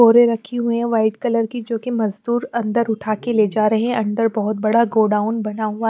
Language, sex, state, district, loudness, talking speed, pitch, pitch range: Hindi, female, Chandigarh, Chandigarh, -19 LUFS, 235 wpm, 225 Hz, 215-235 Hz